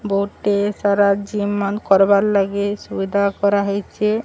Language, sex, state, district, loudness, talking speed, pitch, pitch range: Odia, male, Odisha, Sambalpur, -18 LUFS, 140 wpm, 200 Hz, 200-205 Hz